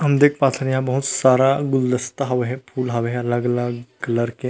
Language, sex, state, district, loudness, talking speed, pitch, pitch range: Chhattisgarhi, male, Chhattisgarh, Rajnandgaon, -20 LUFS, 200 wpm, 130 Hz, 120-135 Hz